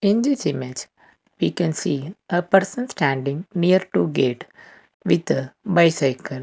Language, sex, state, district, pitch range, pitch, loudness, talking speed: English, male, Karnataka, Bangalore, 140-195 Hz, 170 Hz, -21 LUFS, 140 wpm